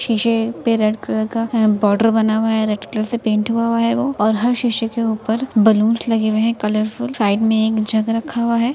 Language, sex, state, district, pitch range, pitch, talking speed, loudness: Hindi, female, Uttar Pradesh, Etah, 215-230 Hz, 225 Hz, 235 wpm, -17 LUFS